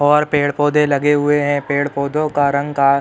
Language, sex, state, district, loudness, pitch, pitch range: Hindi, male, Uttar Pradesh, Hamirpur, -16 LUFS, 145 Hz, 140-145 Hz